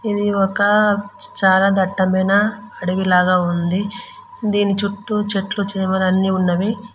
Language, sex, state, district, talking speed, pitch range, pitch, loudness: Telugu, female, Andhra Pradesh, Guntur, 105 wpm, 190-205 Hz, 200 Hz, -18 LUFS